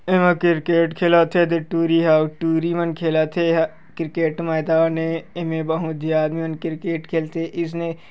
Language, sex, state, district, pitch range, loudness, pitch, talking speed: Chhattisgarhi, female, Chhattisgarh, Kabirdham, 160-170 Hz, -20 LUFS, 165 Hz, 185 wpm